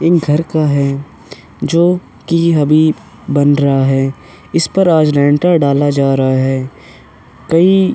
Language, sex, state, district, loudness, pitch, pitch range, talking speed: Hindi, male, Uttar Pradesh, Hamirpur, -13 LUFS, 145 Hz, 140-165 Hz, 145 wpm